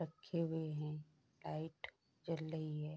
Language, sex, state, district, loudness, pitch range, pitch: Hindi, female, Bihar, Bhagalpur, -45 LUFS, 150-160 Hz, 155 Hz